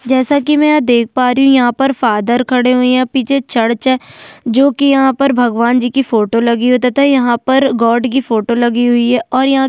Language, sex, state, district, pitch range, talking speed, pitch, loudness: Hindi, female, Chhattisgarh, Kabirdham, 240-270 Hz, 240 wpm, 250 Hz, -12 LUFS